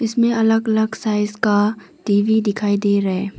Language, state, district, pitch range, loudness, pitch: Hindi, Arunachal Pradesh, Papum Pare, 205-220 Hz, -18 LUFS, 210 Hz